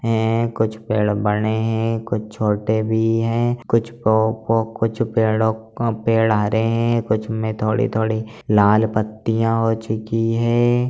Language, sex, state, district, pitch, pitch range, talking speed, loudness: Hindi, male, Bihar, Jamui, 110 Hz, 110-115 Hz, 140 wpm, -19 LUFS